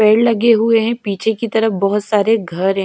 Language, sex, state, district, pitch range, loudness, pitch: Hindi, female, Odisha, Malkangiri, 200-225 Hz, -15 LUFS, 220 Hz